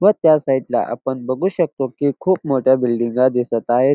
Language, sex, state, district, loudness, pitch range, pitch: Marathi, male, Maharashtra, Dhule, -18 LUFS, 125-150 Hz, 130 Hz